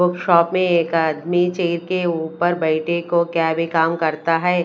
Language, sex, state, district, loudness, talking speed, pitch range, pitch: Hindi, female, Chhattisgarh, Raipur, -19 LUFS, 180 wpm, 165-175 Hz, 170 Hz